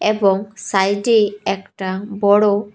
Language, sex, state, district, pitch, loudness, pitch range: Bengali, female, Tripura, West Tripura, 205 Hz, -17 LUFS, 195-210 Hz